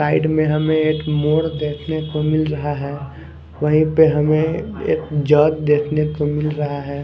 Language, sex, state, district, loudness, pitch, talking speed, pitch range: Hindi, male, Chandigarh, Chandigarh, -18 LUFS, 150 Hz, 170 wpm, 150-155 Hz